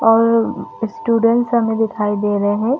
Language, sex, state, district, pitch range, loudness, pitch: Hindi, female, Chhattisgarh, Rajnandgaon, 215-230 Hz, -17 LUFS, 225 Hz